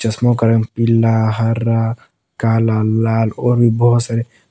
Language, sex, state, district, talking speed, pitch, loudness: Hindi, male, Jharkhand, Palamu, 135 wpm, 115 Hz, -15 LUFS